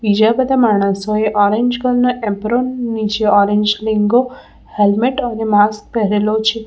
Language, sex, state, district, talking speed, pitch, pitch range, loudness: Gujarati, female, Gujarat, Valsad, 125 wpm, 215 Hz, 210-240 Hz, -15 LUFS